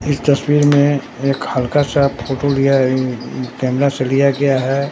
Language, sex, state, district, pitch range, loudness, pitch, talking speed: Hindi, male, Bihar, Katihar, 130-140 Hz, -16 LUFS, 135 Hz, 170 wpm